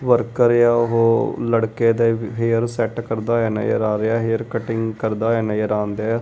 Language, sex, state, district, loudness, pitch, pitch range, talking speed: Punjabi, male, Punjab, Kapurthala, -19 LUFS, 115 Hz, 110-115 Hz, 185 wpm